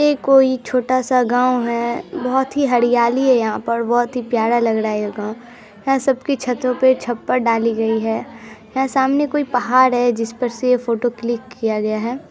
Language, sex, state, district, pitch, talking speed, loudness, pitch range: Hindi, female, Bihar, Saharsa, 245 Hz, 200 wpm, -18 LUFS, 230-255 Hz